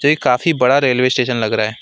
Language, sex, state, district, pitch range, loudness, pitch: Hindi, male, West Bengal, Alipurduar, 120-140 Hz, -15 LUFS, 125 Hz